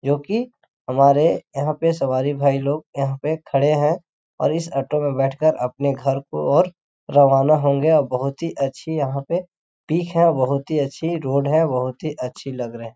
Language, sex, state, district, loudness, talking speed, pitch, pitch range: Hindi, male, Chhattisgarh, Korba, -20 LUFS, 190 wpm, 145 Hz, 135-160 Hz